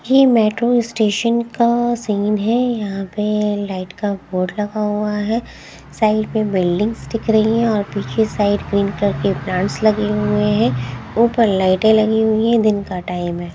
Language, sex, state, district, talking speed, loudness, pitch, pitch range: Hindi, female, Haryana, Jhajjar, 175 wpm, -17 LUFS, 210 Hz, 200-225 Hz